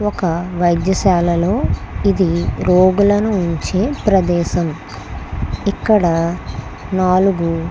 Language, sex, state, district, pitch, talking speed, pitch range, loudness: Telugu, female, Andhra Pradesh, Krishna, 180 Hz, 60 wpm, 170-195 Hz, -16 LUFS